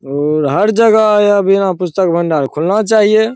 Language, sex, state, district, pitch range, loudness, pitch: Hindi, male, Bihar, Begusarai, 160-215 Hz, -12 LUFS, 195 Hz